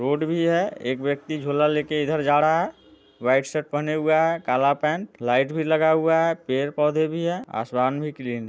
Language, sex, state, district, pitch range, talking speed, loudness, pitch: Hindi, male, Bihar, Muzaffarpur, 135-160 Hz, 225 wpm, -23 LUFS, 150 Hz